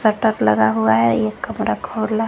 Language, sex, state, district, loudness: Hindi, female, Jharkhand, Garhwa, -18 LUFS